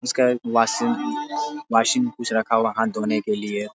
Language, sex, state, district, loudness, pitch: Hindi, male, Bihar, Darbhanga, -22 LUFS, 115 Hz